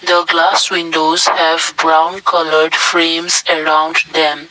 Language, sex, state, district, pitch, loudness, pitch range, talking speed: English, male, Assam, Kamrup Metropolitan, 160 Hz, -12 LUFS, 155-170 Hz, 120 wpm